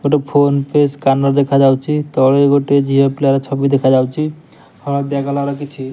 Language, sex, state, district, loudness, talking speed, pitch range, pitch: Odia, male, Odisha, Nuapada, -14 LUFS, 170 wpm, 135-145 Hz, 140 Hz